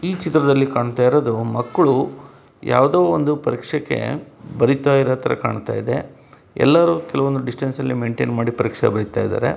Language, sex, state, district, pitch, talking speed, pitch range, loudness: Kannada, male, Karnataka, Bellary, 135 Hz, 140 wpm, 120-150 Hz, -19 LUFS